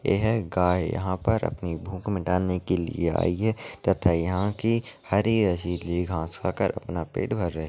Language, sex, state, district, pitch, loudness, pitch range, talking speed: Hindi, male, Chhattisgarh, Raigarh, 95 Hz, -26 LUFS, 90-105 Hz, 185 wpm